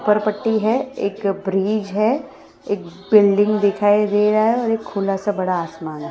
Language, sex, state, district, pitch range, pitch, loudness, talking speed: Hindi, female, Maharashtra, Mumbai Suburban, 195-215 Hz, 205 Hz, -19 LUFS, 195 wpm